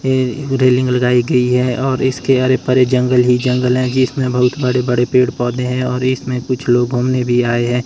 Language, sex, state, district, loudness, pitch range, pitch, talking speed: Hindi, male, Himachal Pradesh, Shimla, -15 LUFS, 125-130 Hz, 125 Hz, 215 wpm